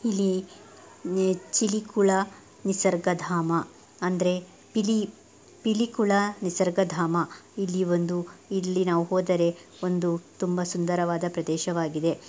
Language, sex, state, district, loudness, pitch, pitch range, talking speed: Kannada, female, Karnataka, Dakshina Kannada, -26 LUFS, 180 Hz, 175-195 Hz, 95 wpm